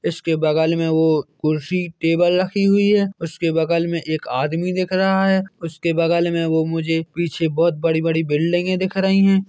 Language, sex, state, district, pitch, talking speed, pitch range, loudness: Hindi, male, Chhattisgarh, Bilaspur, 170 Hz, 190 wpm, 160-185 Hz, -19 LUFS